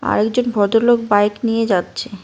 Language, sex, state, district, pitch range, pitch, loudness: Bengali, female, West Bengal, Cooch Behar, 205-235 Hz, 225 Hz, -16 LUFS